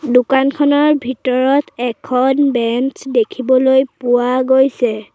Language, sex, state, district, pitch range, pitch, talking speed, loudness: Assamese, female, Assam, Sonitpur, 245-270 Hz, 260 Hz, 80 wpm, -14 LUFS